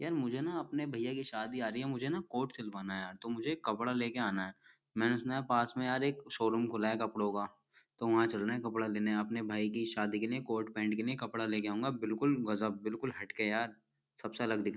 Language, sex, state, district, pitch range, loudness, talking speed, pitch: Hindi, male, Uttar Pradesh, Jyotiba Phule Nagar, 105-125 Hz, -36 LUFS, 250 wpm, 115 Hz